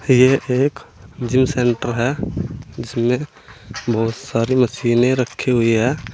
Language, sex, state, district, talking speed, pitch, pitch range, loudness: Hindi, male, Uttar Pradesh, Saharanpur, 115 wpm, 125 Hz, 115-130 Hz, -18 LUFS